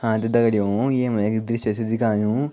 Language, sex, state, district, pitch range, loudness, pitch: Garhwali, male, Uttarakhand, Tehri Garhwal, 105-115 Hz, -21 LUFS, 110 Hz